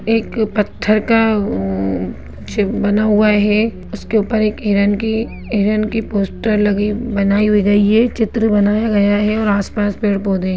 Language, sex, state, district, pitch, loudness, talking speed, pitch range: Hindi, female, Bihar, Jamui, 210 Hz, -16 LUFS, 160 wpm, 205-220 Hz